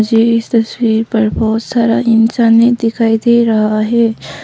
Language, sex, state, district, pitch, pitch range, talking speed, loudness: Hindi, female, Arunachal Pradesh, Papum Pare, 225 Hz, 225-235 Hz, 150 wpm, -12 LUFS